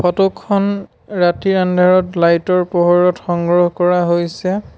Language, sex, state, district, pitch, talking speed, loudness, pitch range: Assamese, male, Assam, Sonitpur, 180 Hz, 125 wpm, -15 LUFS, 175-190 Hz